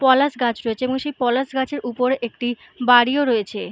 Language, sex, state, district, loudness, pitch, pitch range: Bengali, female, West Bengal, Purulia, -20 LUFS, 250 Hz, 240-265 Hz